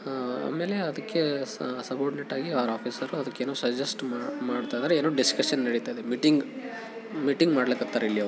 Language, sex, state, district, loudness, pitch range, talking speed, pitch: Kannada, male, Karnataka, Bijapur, -28 LUFS, 125-165 Hz, 145 wpm, 140 Hz